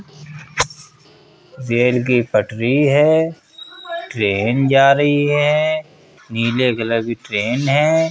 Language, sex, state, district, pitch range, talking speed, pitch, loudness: Hindi, male, Uttar Pradesh, Hamirpur, 120-155 Hz, 95 wpm, 140 Hz, -16 LUFS